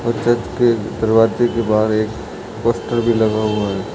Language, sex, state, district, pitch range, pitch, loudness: Hindi, male, Bihar, Lakhisarai, 110-115 Hz, 110 Hz, -17 LUFS